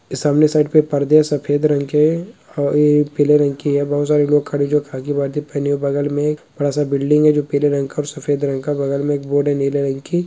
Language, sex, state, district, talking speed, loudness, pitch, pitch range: Hindi, female, Bihar, Purnia, 270 wpm, -17 LUFS, 145 Hz, 140-150 Hz